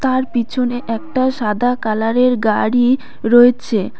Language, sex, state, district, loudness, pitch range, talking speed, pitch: Bengali, female, West Bengal, Cooch Behar, -16 LUFS, 225-255 Hz, 105 wpm, 245 Hz